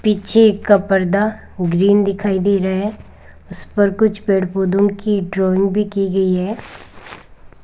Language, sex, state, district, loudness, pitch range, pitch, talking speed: Hindi, female, Rajasthan, Bikaner, -16 LUFS, 190-205 Hz, 200 Hz, 150 wpm